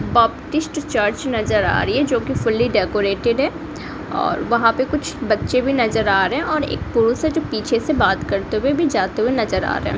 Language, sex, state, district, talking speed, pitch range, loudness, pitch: Hindi, female, Bihar, Kaimur, 225 wpm, 230-300 Hz, -19 LUFS, 245 Hz